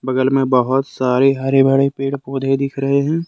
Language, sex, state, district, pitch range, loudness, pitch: Hindi, male, Jharkhand, Deoghar, 130-135 Hz, -16 LUFS, 135 Hz